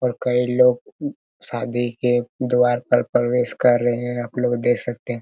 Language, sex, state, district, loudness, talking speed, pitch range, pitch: Hindi, male, Bihar, Araria, -20 LUFS, 170 wpm, 120-125 Hz, 120 Hz